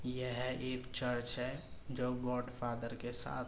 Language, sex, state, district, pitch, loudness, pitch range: Hindi, male, Uttar Pradesh, Jalaun, 125 Hz, -40 LUFS, 120-125 Hz